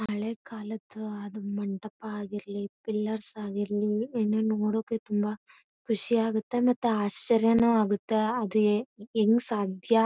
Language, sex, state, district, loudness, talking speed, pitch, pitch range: Kannada, female, Karnataka, Bellary, -28 LUFS, 95 wpm, 215 Hz, 210-225 Hz